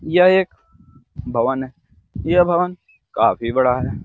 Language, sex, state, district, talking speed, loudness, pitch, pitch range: Hindi, male, Bihar, Darbhanga, 135 wpm, -18 LUFS, 130 Hz, 115-175 Hz